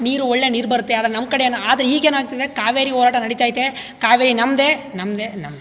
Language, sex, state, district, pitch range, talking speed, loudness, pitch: Kannada, male, Karnataka, Chamarajanagar, 235-265 Hz, 205 wpm, -16 LUFS, 245 Hz